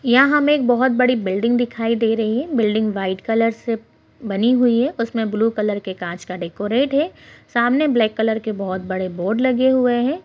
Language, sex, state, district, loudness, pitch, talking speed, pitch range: Hindi, female, Bihar, Bhagalpur, -19 LUFS, 230 Hz, 205 wpm, 210-250 Hz